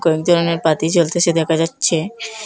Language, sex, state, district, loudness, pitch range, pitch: Bengali, female, Assam, Hailakandi, -16 LUFS, 160-175 Hz, 165 Hz